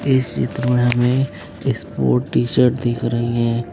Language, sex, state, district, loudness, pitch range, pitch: Hindi, female, Uttar Pradesh, Lucknow, -19 LUFS, 120-125 Hz, 120 Hz